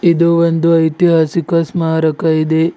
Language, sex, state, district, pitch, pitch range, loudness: Kannada, male, Karnataka, Bidar, 165 Hz, 160-170 Hz, -13 LUFS